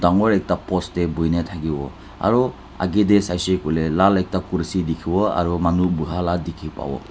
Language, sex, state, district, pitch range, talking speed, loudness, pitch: Nagamese, male, Nagaland, Dimapur, 85-95 Hz, 210 wpm, -21 LUFS, 90 Hz